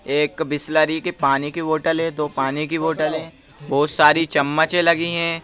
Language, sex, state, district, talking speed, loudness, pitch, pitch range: Hindi, male, Madhya Pradesh, Bhopal, 200 wpm, -19 LUFS, 155 Hz, 145-165 Hz